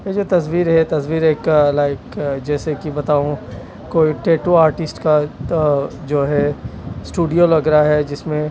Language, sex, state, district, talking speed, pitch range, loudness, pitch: Hindi, male, Delhi, New Delhi, 150 wpm, 145-160 Hz, -17 LUFS, 150 Hz